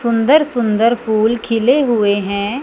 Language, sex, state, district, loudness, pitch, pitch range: Hindi, male, Punjab, Fazilka, -14 LUFS, 230 Hz, 215-245 Hz